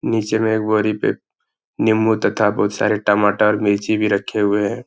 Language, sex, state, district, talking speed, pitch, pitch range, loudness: Hindi, male, Uttar Pradesh, Hamirpur, 185 wpm, 105 Hz, 105-110 Hz, -18 LUFS